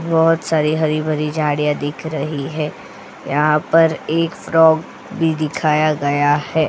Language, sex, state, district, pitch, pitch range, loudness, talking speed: Hindi, female, Goa, North and South Goa, 155 Hz, 150-160 Hz, -17 LUFS, 145 wpm